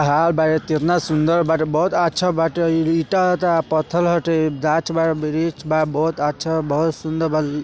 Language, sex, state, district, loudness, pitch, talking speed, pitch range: Bhojpuri, male, Bihar, East Champaran, -19 LUFS, 160 Hz, 165 wpm, 155-165 Hz